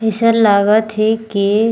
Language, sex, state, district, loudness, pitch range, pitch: Sadri, female, Chhattisgarh, Jashpur, -14 LUFS, 210-225 Hz, 220 Hz